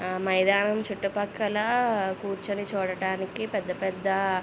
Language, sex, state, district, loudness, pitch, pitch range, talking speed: Telugu, female, Andhra Pradesh, Visakhapatnam, -27 LUFS, 195 Hz, 190-205 Hz, 95 wpm